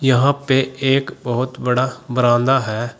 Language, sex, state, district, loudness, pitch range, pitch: Hindi, male, Uttar Pradesh, Saharanpur, -18 LUFS, 120-135 Hz, 130 Hz